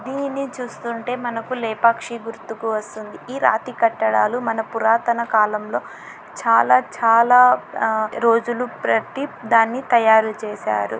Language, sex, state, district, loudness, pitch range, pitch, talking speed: Telugu, female, Andhra Pradesh, Anantapur, -19 LUFS, 220-245 Hz, 230 Hz, 110 wpm